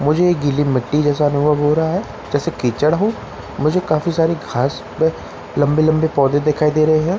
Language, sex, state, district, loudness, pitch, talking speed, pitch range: Hindi, male, Bihar, Katihar, -17 LUFS, 150 Hz, 235 wpm, 145-160 Hz